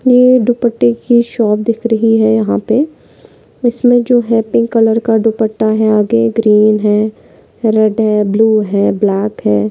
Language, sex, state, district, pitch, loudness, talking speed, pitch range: Hindi, female, Maharashtra, Pune, 225 Hz, -12 LUFS, 155 wpm, 215-235 Hz